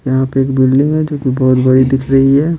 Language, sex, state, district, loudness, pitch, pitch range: Hindi, male, Bihar, Patna, -12 LUFS, 135 Hz, 130-140 Hz